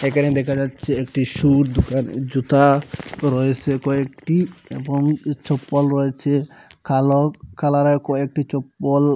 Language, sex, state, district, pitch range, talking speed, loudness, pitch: Bengali, male, Assam, Hailakandi, 135-145 Hz, 105 wpm, -20 LUFS, 140 Hz